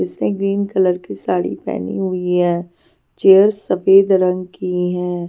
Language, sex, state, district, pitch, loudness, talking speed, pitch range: Hindi, female, Punjab, Pathankot, 185 Hz, -17 LUFS, 150 wpm, 180-195 Hz